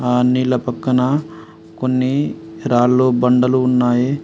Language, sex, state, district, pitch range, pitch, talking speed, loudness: Telugu, male, Telangana, Adilabad, 125-130 Hz, 125 Hz, 100 wpm, -16 LUFS